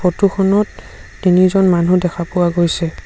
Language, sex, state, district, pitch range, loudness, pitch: Assamese, male, Assam, Sonitpur, 175-190 Hz, -15 LUFS, 180 Hz